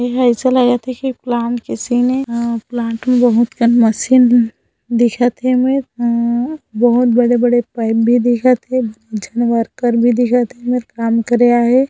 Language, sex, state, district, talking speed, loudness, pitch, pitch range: Hindi, female, Chhattisgarh, Bilaspur, 175 wpm, -14 LUFS, 240 Hz, 235-250 Hz